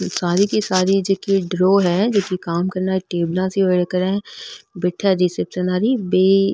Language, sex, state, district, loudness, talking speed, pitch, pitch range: Rajasthani, female, Rajasthan, Nagaur, -19 LUFS, 80 wpm, 185 Hz, 180-195 Hz